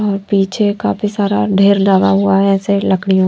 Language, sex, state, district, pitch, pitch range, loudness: Hindi, female, Haryana, Charkhi Dadri, 200 Hz, 195-205 Hz, -13 LUFS